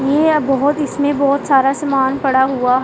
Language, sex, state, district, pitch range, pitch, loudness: Hindi, female, Punjab, Pathankot, 265-285 Hz, 275 Hz, -15 LUFS